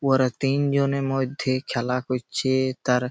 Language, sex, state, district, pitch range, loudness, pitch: Bengali, male, West Bengal, Malda, 125-135 Hz, -24 LUFS, 130 Hz